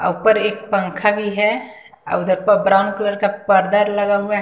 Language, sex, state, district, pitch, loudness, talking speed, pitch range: Hindi, female, Bihar, West Champaran, 205 Hz, -17 LUFS, 215 wpm, 195-210 Hz